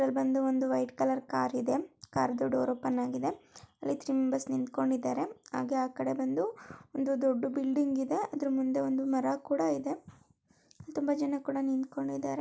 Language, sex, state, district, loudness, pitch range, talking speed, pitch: Kannada, female, Karnataka, Shimoga, -32 LUFS, 245-275 Hz, 160 wpm, 265 Hz